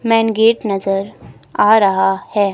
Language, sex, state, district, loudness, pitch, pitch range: Hindi, female, Himachal Pradesh, Shimla, -15 LUFS, 205 Hz, 195-225 Hz